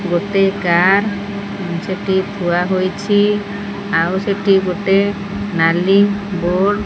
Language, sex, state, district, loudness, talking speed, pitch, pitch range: Odia, female, Odisha, Khordha, -16 LUFS, 105 wpm, 195 Hz, 185-200 Hz